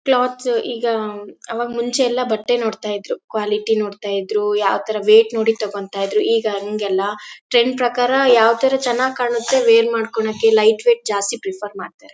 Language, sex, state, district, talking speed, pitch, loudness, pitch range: Kannada, female, Karnataka, Bellary, 150 wpm, 225 Hz, -18 LUFS, 210-240 Hz